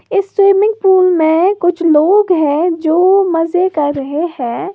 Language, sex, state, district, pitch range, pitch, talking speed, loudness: Hindi, female, Uttar Pradesh, Lalitpur, 315-385 Hz, 350 Hz, 150 wpm, -12 LUFS